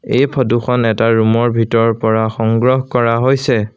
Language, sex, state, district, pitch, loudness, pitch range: Assamese, male, Assam, Sonitpur, 115 Hz, -14 LUFS, 115-125 Hz